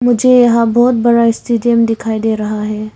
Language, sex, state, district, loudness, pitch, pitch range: Hindi, female, Arunachal Pradesh, Longding, -12 LUFS, 230 Hz, 220-240 Hz